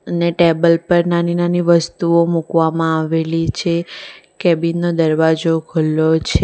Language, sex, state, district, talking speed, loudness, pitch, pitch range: Gujarati, female, Gujarat, Valsad, 130 wpm, -16 LUFS, 170 Hz, 160-170 Hz